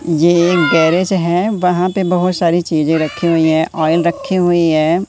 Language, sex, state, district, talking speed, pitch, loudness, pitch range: Hindi, male, Madhya Pradesh, Katni, 190 wpm, 170 Hz, -14 LUFS, 160-180 Hz